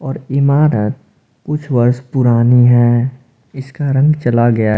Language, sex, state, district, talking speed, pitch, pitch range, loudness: Hindi, male, Jharkhand, Palamu, 125 wpm, 130 Hz, 120-140 Hz, -13 LUFS